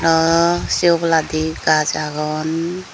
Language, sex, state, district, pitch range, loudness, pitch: Chakma, female, Tripura, Dhalai, 155-170 Hz, -17 LUFS, 160 Hz